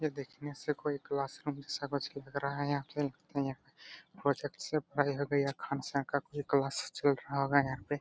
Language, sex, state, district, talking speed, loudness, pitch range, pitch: Hindi, male, Jharkhand, Jamtara, 230 wpm, -35 LUFS, 140-145 Hz, 140 Hz